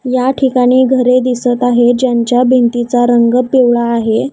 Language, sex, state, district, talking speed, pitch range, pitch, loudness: Marathi, female, Maharashtra, Gondia, 140 wpm, 240-255 Hz, 245 Hz, -11 LUFS